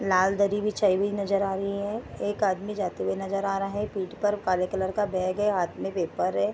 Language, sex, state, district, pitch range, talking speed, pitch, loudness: Hindi, female, Bihar, Darbhanga, 190-205 Hz, 250 wpm, 195 Hz, -27 LUFS